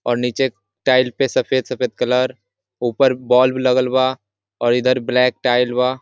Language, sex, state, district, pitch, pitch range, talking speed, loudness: Hindi, male, Jharkhand, Sahebganj, 125 Hz, 120-130 Hz, 170 wpm, -18 LUFS